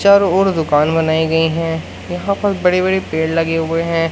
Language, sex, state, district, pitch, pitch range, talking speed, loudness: Hindi, male, Madhya Pradesh, Katni, 165 Hz, 160-190 Hz, 205 wpm, -16 LUFS